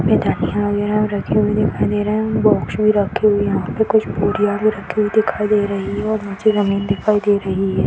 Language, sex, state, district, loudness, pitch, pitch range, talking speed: Hindi, female, Bihar, Samastipur, -17 LUFS, 205 Hz, 200-215 Hz, 250 wpm